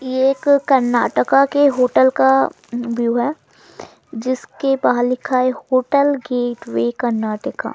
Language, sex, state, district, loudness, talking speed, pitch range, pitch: Hindi, female, Delhi, New Delhi, -17 LUFS, 130 wpm, 235-270 Hz, 250 Hz